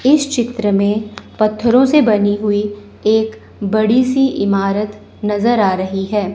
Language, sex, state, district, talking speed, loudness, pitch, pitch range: Hindi, male, Chandigarh, Chandigarh, 140 wpm, -15 LUFS, 210 Hz, 205-240 Hz